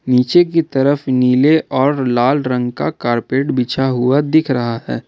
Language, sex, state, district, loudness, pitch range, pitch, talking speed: Hindi, male, Jharkhand, Ranchi, -15 LUFS, 125-145 Hz, 130 Hz, 165 wpm